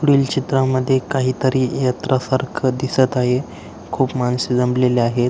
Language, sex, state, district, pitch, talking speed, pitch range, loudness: Marathi, male, Maharashtra, Aurangabad, 130 Hz, 145 wpm, 125-135 Hz, -18 LUFS